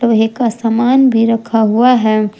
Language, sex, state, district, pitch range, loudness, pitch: Hindi, female, Jharkhand, Garhwa, 220-240 Hz, -12 LUFS, 230 Hz